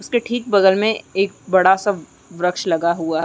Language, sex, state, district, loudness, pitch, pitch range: Hindi, female, Uttarakhand, Uttarkashi, -18 LUFS, 190 Hz, 170-205 Hz